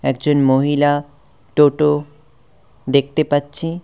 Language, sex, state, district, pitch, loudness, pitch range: Bengali, male, West Bengal, Cooch Behar, 145 Hz, -17 LUFS, 140-150 Hz